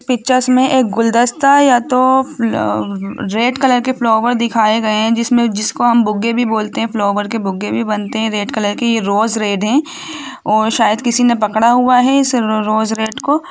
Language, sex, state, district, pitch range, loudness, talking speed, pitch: Hindi, female, Jharkhand, Jamtara, 215-255 Hz, -14 LUFS, 190 wpm, 230 Hz